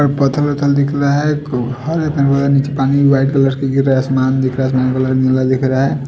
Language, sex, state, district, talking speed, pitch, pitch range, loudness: Hindi, male, Odisha, Sambalpur, 255 wpm, 135 Hz, 130-140 Hz, -14 LUFS